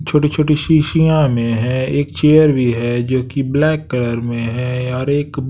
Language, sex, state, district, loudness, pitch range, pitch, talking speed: Hindi, male, Bihar, West Champaran, -15 LUFS, 125-150 Hz, 135 Hz, 175 wpm